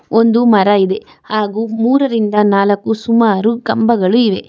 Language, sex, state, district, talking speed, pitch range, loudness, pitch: Kannada, female, Karnataka, Bangalore, 120 wpm, 205-230 Hz, -13 LUFS, 220 Hz